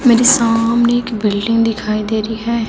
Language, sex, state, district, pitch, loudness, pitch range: Hindi, female, Chhattisgarh, Raipur, 230 Hz, -14 LUFS, 220-235 Hz